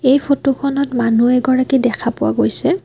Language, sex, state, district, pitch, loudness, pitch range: Assamese, female, Assam, Kamrup Metropolitan, 260 Hz, -15 LUFS, 245-280 Hz